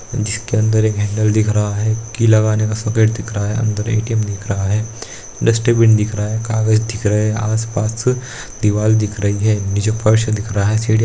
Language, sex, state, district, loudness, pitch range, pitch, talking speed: Hindi, male, Bihar, Lakhisarai, -17 LUFS, 105-110 Hz, 110 Hz, 200 wpm